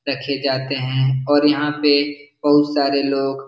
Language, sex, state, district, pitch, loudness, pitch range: Hindi, male, Bihar, Jahanabad, 140 Hz, -18 LUFS, 135-145 Hz